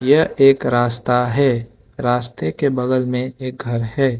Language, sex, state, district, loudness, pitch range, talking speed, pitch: Hindi, male, Arunachal Pradesh, Lower Dibang Valley, -18 LUFS, 120-135 Hz, 155 wpm, 125 Hz